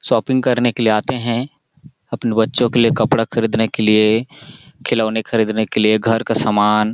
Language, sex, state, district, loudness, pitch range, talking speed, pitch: Hindi, male, Chhattisgarh, Balrampur, -16 LUFS, 110-120 Hz, 180 wpm, 115 Hz